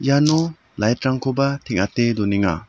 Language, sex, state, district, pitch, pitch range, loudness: Garo, male, Meghalaya, South Garo Hills, 130 Hz, 110-140 Hz, -20 LUFS